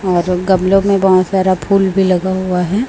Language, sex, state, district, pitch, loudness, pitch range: Hindi, female, Chhattisgarh, Raipur, 190 Hz, -13 LUFS, 185-195 Hz